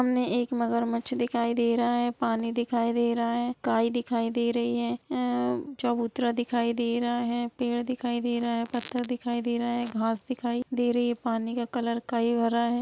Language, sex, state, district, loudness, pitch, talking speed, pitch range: Hindi, female, Bihar, Sitamarhi, -28 LUFS, 240 Hz, 210 wpm, 235-240 Hz